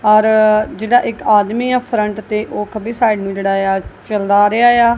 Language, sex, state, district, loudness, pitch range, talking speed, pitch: Punjabi, female, Punjab, Kapurthala, -15 LUFS, 205-230 Hz, 205 wpm, 215 Hz